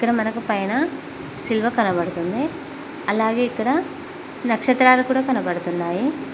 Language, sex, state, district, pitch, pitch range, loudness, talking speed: Telugu, female, Telangana, Mahabubabad, 245 Hz, 220-295 Hz, -21 LUFS, 95 wpm